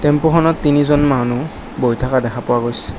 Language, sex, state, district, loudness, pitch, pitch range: Assamese, male, Assam, Kamrup Metropolitan, -15 LUFS, 130 Hz, 120-145 Hz